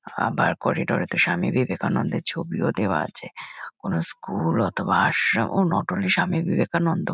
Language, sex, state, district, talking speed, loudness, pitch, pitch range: Bengali, female, West Bengal, Kolkata, 145 wpm, -23 LUFS, 180 Hz, 170-185 Hz